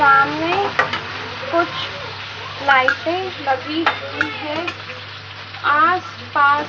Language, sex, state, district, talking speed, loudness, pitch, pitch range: Hindi, female, Madhya Pradesh, Dhar, 70 wpm, -19 LUFS, 315 Hz, 285-340 Hz